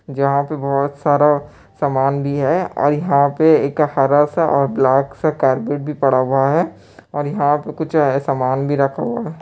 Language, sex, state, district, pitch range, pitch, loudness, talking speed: Hindi, male, Bihar, Kishanganj, 135-150 Hz, 140 Hz, -17 LUFS, 195 wpm